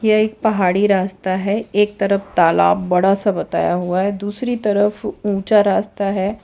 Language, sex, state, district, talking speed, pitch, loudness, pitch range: Hindi, female, Gujarat, Valsad, 170 wpm, 200 Hz, -17 LUFS, 190-210 Hz